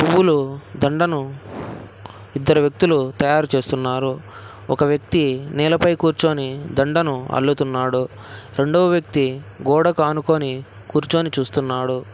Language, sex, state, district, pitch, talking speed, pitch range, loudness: Telugu, male, Telangana, Hyderabad, 140 Hz, 90 wpm, 130-155 Hz, -19 LUFS